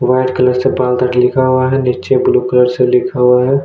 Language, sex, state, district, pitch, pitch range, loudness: Hindi, male, Chhattisgarh, Kabirdham, 125 Hz, 125-130 Hz, -12 LUFS